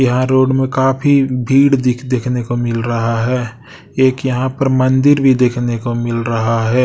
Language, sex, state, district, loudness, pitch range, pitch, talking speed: Hindi, male, Odisha, Sambalpur, -14 LUFS, 120-130 Hz, 125 Hz, 185 wpm